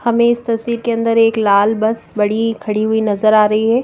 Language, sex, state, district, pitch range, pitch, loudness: Hindi, female, Madhya Pradesh, Bhopal, 215-230 Hz, 225 Hz, -15 LUFS